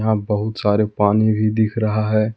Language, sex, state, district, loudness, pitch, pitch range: Hindi, male, Jharkhand, Palamu, -18 LUFS, 110 Hz, 105-110 Hz